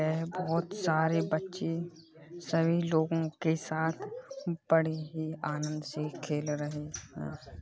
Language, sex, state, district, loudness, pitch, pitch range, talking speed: Hindi, male, Uttar Pradesh, Hamirpur, -32 LUFS, 160 Hz, 155-170 Hz, 120 wpm